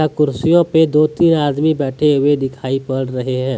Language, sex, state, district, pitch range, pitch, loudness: Hindi, male, Jharkhand, Deoghar, 130-155 Hz, 145 Hz, -15 LUFS